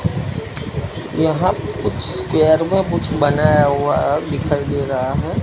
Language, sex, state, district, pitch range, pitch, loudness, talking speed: Hindi, male, Gujarat, Gandhinagar, 130-155 Hz, 145 Hz, -18 LUFS, 110 wpm